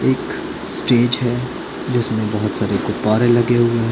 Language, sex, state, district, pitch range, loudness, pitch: Hindi, male, Chhattisgarh, Bilaspur, 110-120 Hz, -18 LUFS, 120 Hz